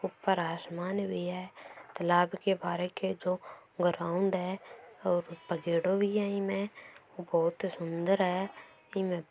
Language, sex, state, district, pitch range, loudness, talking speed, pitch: Marwari, female, Rajasthan, Churu, 175-195 Hz, -32 LUFS, 130 wpm, 180 Hz